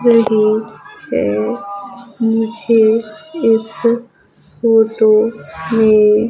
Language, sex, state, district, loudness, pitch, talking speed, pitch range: Hindi, female, Madhya Pradesh, Umaria, -14 LUFS, 220 Hz, 55 wpm, 215-230 Hz